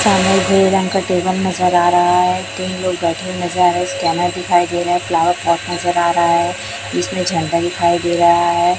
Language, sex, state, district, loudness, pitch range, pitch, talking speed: Hindi, male, Chhattisgarh, Raipur, -15 LUFS, 170-180 Hz, 175 Hz, 220 wpm